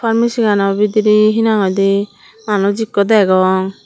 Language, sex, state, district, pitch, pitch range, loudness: Chakma, female, Tripura, Dhalai, 210 Hz, 195-220 Hz, -13 LUFS